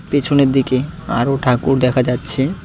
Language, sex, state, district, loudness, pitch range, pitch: Bengali, male, West Bengal, Cooch Behar, -16 LUFS, 125-140 Hz, 135 Hz